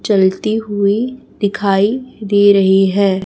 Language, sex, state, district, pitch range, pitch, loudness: Hindi, female, Chhattisgarh, Raipur, 195-215 Hz, 205 Hz, -14 LUFS